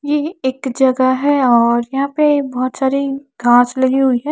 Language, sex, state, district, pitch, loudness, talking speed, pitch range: Hindi, female, Maharashtra, Washim, 265 Hz, -15 LUFS, 180 wpm, 255-280 Hz